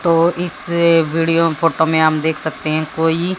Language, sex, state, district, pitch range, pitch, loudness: Hindi, female, Haryana, Jhajjar, 160-170 Hz, 165 Hz, -15 LUFS